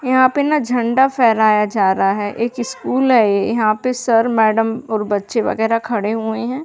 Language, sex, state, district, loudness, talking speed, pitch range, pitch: Hindi, female, Uttar Pradesh, Hamirpur, -16 LUFS, 200 wpm, 215-250 Hz, 225 Hz